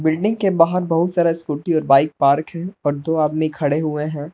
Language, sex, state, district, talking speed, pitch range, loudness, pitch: Hindi, male, Jharkhand, Palamu, 220 wpm, 150-170 Hz, -18 LUFS, 155 Hz